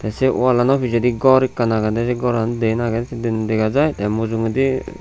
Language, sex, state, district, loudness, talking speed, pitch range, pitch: Chakma, male, Tripura, Unakoti, -18 LUFS, 190 wpm, 115-130 Hz, 120 Hz